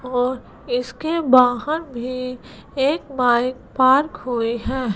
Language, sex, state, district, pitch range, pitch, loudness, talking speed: Hindi, female, Gujarat, Gandhinagar, 245-270 Hz, 255 Hz, -20 LUFS, 110 wpm